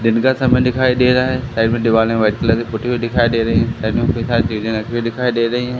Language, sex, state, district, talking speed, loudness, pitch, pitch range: Hindi, male, Madhya Pradesh, Katni, 230 wpm, -16 LUFS, 115 Hz, 115-125 Hz